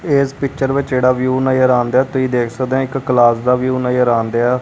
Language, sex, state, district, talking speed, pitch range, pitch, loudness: Punjabi, male, Punjab, Kapurthala, 220 wpm, 125-135 Hz, 130 Hz, -15 LUFS